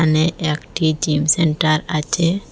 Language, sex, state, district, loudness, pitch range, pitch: Bengali, female, Assam, Hailakandi, -18 LUFS, 155-165 Hz, 155 Hz